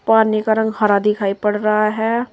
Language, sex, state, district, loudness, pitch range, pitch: Hindi, female, Uttar Pradesh, Saharanpur, -17 LUFS, 210-220 Hz, 215 Hz